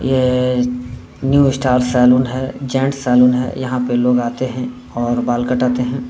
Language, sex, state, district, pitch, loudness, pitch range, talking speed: Hindi, male, Bihar, Saran, 125 Hz, -16 LUFS, 125-130 Hz, 165 wpm